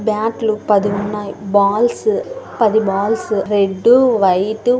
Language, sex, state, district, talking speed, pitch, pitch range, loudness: Telugu, female, Andhra Pradesh, Anantapur, 125 wpm, 215 Hz, 200-235 Hz, -16 LUFS